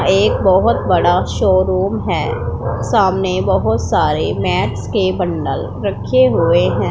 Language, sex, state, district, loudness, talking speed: Hindi, female, Punjab, Pathankot, -15 LUFS, 120 wpm